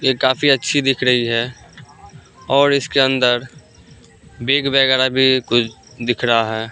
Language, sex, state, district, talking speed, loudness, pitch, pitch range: Hindi, male, Bihar, Katihar, 145 wpm, -16 LUFS, 130 Hz, 120-135 Hz